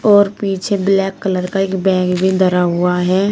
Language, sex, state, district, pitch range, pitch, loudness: Hindi, female, Uttar Pradesh, Shamli, 180-195 Hz, 190 Hz, -15 LUFS